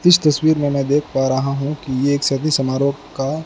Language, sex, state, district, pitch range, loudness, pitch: Hindi, male, Rajasthan, Bikaner, 135-150 Hz, -18 LUFS, 140 Hz